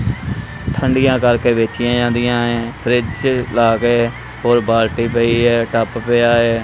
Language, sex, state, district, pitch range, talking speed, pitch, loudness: Punjabi, male, Punjab, Kapurthala, 115-120 Hz, 125 wpm, 120 Hz, -16 LUFS